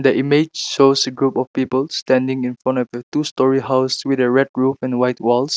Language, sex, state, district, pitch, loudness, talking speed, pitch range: English, male, Nagaland, Kohima, 130 Hz, -18 LUFS, 215 wpm, 125-135 Hz